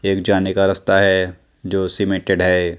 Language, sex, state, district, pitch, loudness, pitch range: Hindi, male, Chandigarh, Chandigarh, 95 Hz, -17 LUFS, 90-95 Hz